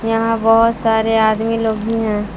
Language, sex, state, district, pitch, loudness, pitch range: Hindi, female, Jharkhand, Palamu, 225 Hz, -15 LUFS, 220-225 Hz